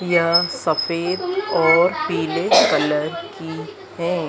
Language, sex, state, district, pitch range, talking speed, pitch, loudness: Hindi, female, Madhya Pradesh, Dhar, 160-175 Hz, 100 wpm, 170 Hz, -18 LUFS